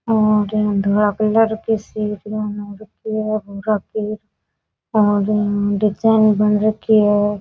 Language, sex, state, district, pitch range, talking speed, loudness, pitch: Rajasthani, female, Rajasthan, Nagaur, 205-215 Hz, 80 wpm, -18 LUFS, 210 Hz